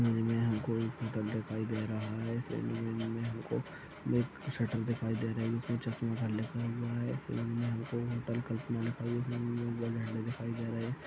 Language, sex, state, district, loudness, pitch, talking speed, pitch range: Hindi, male, Chhattisgarh, Kabirdham, -36 LUFS, 115 Hz, 180 wpm, 115-120 Hz